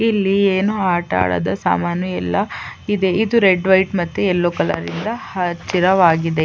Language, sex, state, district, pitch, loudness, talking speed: Kannada, female, Karnataka, Chamarajanagar, 180 Hz, -17 LUFS, 140 wpm